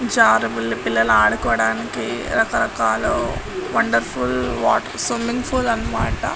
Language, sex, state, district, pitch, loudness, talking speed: Telugu, female, Andhra Pradesh, Guntur, 115 Hz, -19 LUFS, 85 wpm